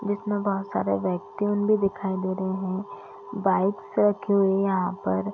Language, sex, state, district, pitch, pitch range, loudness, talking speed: Hindi, female, Bihar, Gopalganj, 195 Hz, 185-205 Hz, -25 LUFS, 170 wpm